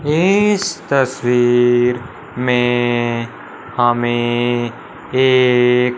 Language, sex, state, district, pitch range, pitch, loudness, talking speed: Hindi, male, Punjab, Fazilka, 120-130 Hz, 125 Hz, -15 LUFS, 50 wpm